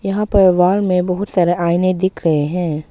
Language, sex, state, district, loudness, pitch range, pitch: Hindi, female, Arunachal Pradesh, Papum Pare, -16 LUFS, 175-190 Hz, 180 Hz